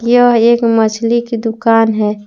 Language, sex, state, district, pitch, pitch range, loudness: Hindi, female, Jharkhand, Palamu, 230 Hz, 225-235 Hz, -12 LUFS